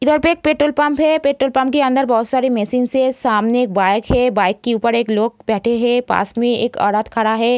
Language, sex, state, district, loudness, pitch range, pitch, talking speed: Hindi, female, Uttar Pradesh, Deoria, -16 LUFS, 225-270 Hz, 245 Hz, 245 wpm